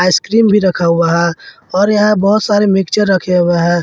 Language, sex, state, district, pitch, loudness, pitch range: Hindi, male, Jharkhand, Ranchi, 190 Hz, -12 LUFS, 175-205 Hz